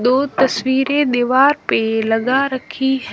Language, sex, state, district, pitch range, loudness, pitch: Hindi, female, Rajasthan, Jaisalmer, 245-275 Hz, -16 LUFS, 265 Hz